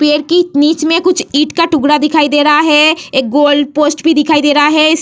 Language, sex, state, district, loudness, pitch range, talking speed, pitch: Hindi, female, Bihar, Vaishali, -10 LUFS, 295-320 Hz, 250 wpm, 300 Hz